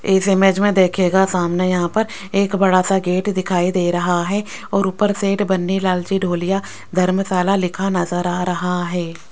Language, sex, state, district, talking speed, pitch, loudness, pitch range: Hindi, female, Rajasthan, Jaipur, 180 wpm, 185 Hz, -18 LUFS, 180-195 Hz